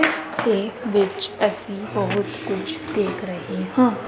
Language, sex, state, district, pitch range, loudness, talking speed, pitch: Punjabi, female, Punjab, Kapurthala, 200-235 Hz, -23 LUFS, 130 wpm, 210 Hz